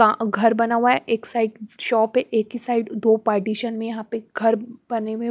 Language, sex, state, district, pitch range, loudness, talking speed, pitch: Hindi, female, Bihar, West Champaran, 220-235 Hz, -22 LUFS, 235 wpm, 225 Hz